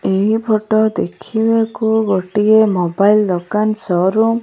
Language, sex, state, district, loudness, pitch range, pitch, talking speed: Odia, female, Odisha, Malkangiri, -15 LUFS, 195-220 Hz, 215 Hz, 110 wpm